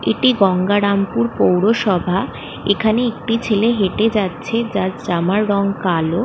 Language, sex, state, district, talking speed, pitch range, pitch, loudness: Bengali, female, West Bengal, Kolkata, 115 wpm, 190-230 Hz, 205 Hz, -17 LUFS